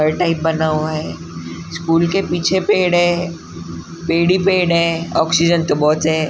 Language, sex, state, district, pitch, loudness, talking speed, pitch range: Hindi, male, Maharashtra, Gondia, 165 Hz, -16 LUFS, 170 wpm, 155-175 Hz